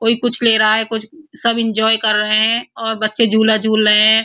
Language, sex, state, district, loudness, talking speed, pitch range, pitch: Hindi, female, Uttar Pradesh, Muzaffarnagar, -14 LUFS, 240 wpm, 215-230 Hz, 220 Hz